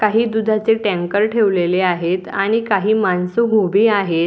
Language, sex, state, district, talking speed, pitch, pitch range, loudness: Marathi, female, Maharashtra, Dhule, 140 wpm, 205 Hz, 185-220 Hz, -16 LUFS